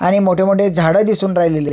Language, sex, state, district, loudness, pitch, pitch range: Marathi, male, Maharashtra, Sindhudurg, -14 LUFS, 190 Hz, 170-200 Hz